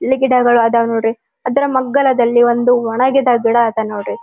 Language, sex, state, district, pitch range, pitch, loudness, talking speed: Kannada, female, Karnataka, Dharwad, 230-260 Hz, 240 Hz, -14 LUFS, 155 wpm